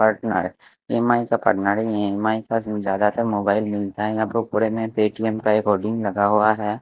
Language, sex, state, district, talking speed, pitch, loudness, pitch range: Hindi, male, Chandigarh, Chandigarh, 210 wpm, 105 Hz, -21 LUFS, 105-110 Hz